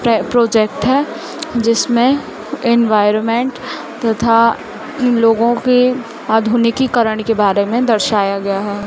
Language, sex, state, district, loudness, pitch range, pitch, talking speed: Hindi, female, Chhattisgarh, Raipur, -14 LUFS, 220-250 Hz, 230 Hz, 110 wpm